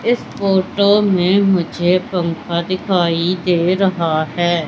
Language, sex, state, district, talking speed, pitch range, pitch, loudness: Hindi, female, Madhya Pradesh, Katni, 115 wpm, 170-195 Hz, 180 Hz, -16 LUFS